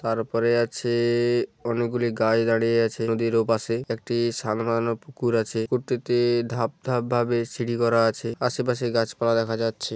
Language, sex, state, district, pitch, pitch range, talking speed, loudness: Bengali, male, West Bengal, Paschim Medinipur, 115 Hz, 115-120 Hz, 145 wpm, -24 LUFS